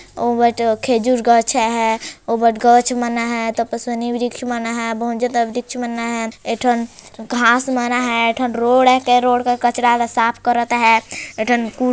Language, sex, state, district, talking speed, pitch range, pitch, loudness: Chhattisgarhi, female, Chhattisgarh, Jashpur, 205 wpm, 230-245 Hz, 235 Hz, -17 LUFS